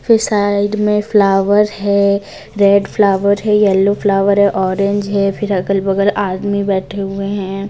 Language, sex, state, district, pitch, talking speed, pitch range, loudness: Hindi, female, Jharkhand, Deoghar, 200 Hz, 155 wpm, 195-205 Hz, -14 LUFS